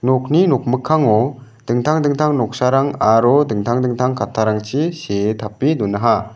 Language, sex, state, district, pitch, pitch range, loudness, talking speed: Garo, male, Meghalaya, South Garo Hills, 125 Hz, 110-145 Hz, -17 LUFS, 115 wpm